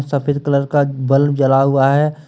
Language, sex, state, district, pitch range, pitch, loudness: Hindi, male, Jharkhand, Deoghar, 135-145 Hz, 140 Hz, -15 LUFS